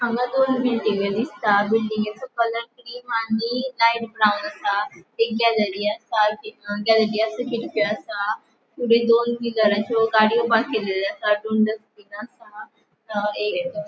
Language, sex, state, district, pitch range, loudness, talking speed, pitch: Konkani, female, Goa, North and South Goa, 210-235 Hz, -22 LUFS, 125 wpm, 220 Hz